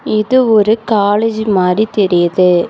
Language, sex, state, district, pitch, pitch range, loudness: Tamil, female, Tamil Nadu, Kanyakumari, 210 Hz, 185-220 Hz, -12 LUFS